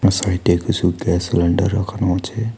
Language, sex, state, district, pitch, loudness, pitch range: Bengali, male, West Bengal, Alipurduar, 95 Hz, -18 LUFS, 90-110 Hz